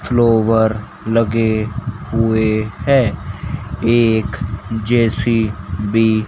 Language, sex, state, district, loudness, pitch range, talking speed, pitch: Hindi, male, Haryana, Charkhi Dadri, -17 LUFS, 110-115 Hz, 65 wpm, 110 Hz